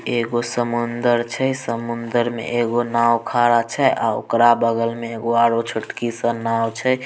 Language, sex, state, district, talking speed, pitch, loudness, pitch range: Maithili, male, Bihar, Samastipur, 155 wpm, 120 Hz, -20 LUFS, 115-120 Hz